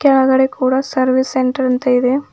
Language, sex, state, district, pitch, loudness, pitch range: Kannada, female, Karnataka, Bidar, 260 Hz, -15 LUFS, 255-265 Hz